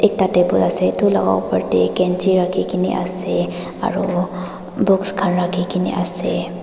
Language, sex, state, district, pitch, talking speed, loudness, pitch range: Nagamese, female, Nagaland, Dimapur, 180 Hz, 145 wpm, -18 LUFS, 180-190 Hz